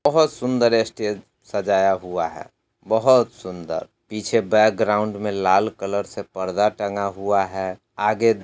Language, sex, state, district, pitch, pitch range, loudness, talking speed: Hindi, male, Bihar, Sitamarhi, 105 Hz, 95-110 Hz, -21 LUFS, 135 wpm